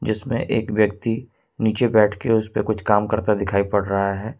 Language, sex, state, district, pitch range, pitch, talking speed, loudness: Hindi, male, Jharkhand, Ranchi, 105-110 Hz, 110 Hz, 190 wpm, -21 LUFS